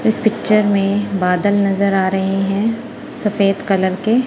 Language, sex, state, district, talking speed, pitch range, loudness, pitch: Hindi, female, Punjab, Kapurthala, 155 wpm, 195-220 Hz, -16 LUFS, 200 Hz